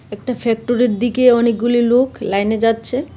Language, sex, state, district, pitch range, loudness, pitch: Bengali, female, Tripura, West Tripura, 225-250 Hz, -16 LUFS, 240 Hz